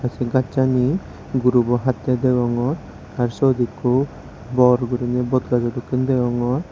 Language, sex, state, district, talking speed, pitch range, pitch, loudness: Chakma, male, Tripura, West Tripura, 105 wpm, 120-130 Hz, 125 Hz, -20 LUFS